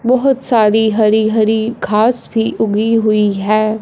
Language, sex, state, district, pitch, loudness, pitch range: Hindi, female, Punjab, Fazilka, 220 Hz, -13 LUFS, 215-225 Hz